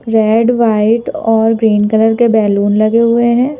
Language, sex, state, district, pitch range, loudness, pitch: Hindi, female, Madhya Pradesh, Bhopal, 220-235 Hz, -11 LUFS, 225 Hz